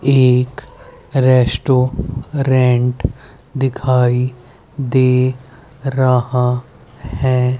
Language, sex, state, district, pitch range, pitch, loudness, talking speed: Hindi, male, Haryana, Rohtak, 125-130 Hz, 130 Hz, -16 LUFS, 45 wpm